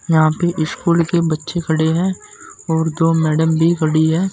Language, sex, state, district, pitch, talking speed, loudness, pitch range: Hindi, male, Uttar Pradesh, Saharanpur, 160 Hz, 180 wpm, -17 LUFS, 160-170 Hz